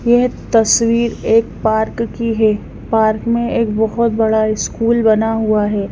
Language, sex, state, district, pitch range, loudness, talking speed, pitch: Hindi, female, Punjab, Fazilka, 220-235 Hz, -15 LUFS, 150 wpm, 225 Hz